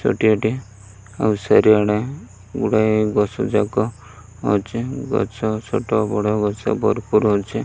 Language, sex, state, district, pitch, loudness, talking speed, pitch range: Odia, male, Odisha, Malkangiri, 110 Hz, -19 LUFS, 100 wpm, 105-110 Hz